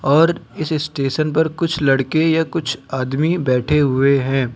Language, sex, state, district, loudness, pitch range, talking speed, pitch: Hindi, male, Uttar Pradesh, Lucknow, -18 LUFS, 135-160 Hz, 155 wpm, 150 Hz